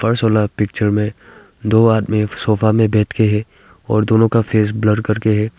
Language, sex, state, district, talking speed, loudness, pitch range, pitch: Hindi, male, Arunachal Pradesh, Longding, 170 wpm, -16 LUFS, 105-110 Hz, 110 Hz